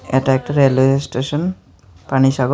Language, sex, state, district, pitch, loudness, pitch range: Bengali, male, Tripura, Unakoti, 135 Hz, -17 LUFS, 125-140 Hz